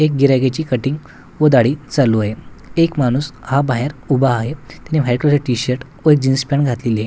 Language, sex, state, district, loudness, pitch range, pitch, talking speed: Marathi, male, Maharashtra, Washim, -16 LUFS, 125-145 Hz, 135 Hz, 185 wpm